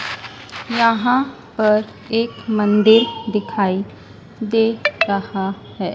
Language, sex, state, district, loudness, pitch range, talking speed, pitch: Hindi, female, Madhya Pradesh, Dhar, -18 LUFS, 210-230 Hz, 80 wpm, 220 Hz